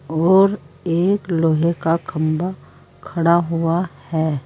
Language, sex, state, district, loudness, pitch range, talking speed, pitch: Hindi, female, Uttar Pradesh, Saharanpur, -19 LUFS, 160-175 Hz, 110 wpm, 165 Hz